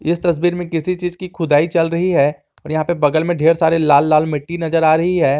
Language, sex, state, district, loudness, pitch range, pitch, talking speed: Hindi, male, Jharkhand, Garhwa, -16 LUFS, 155-175 Hz, 165 Hz, 265 wpm